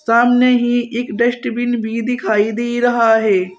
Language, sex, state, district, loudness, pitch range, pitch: Hindi, female, Uttar Pradesh, Saharanpur, -16 LUFS, 225-245 Hz, 235 Hz